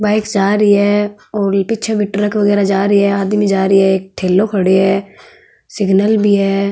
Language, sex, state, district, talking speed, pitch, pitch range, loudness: Marwari, female, Rajasthan, Nagaur, 205 wpm, 200 Hz, 195-205 Hz, -13 LUFS